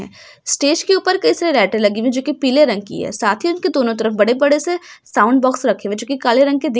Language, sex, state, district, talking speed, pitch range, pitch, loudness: Hindi, female, Bihar, Sitamarhi, 300 wpm, 240-325 Hz, 275 Hz, -16 LUFS